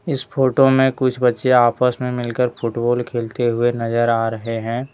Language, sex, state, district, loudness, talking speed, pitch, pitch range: Hindi, male, Jharkhand, Deoghar, -18 LUFS, 180 wpm, 120 Hz, 115-130 Hz